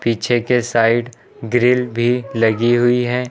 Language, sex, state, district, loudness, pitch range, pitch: Hindi, male, Uttar Pradesh, Lucknow, -16 LUFS, 115-125 Hz, 120 Hz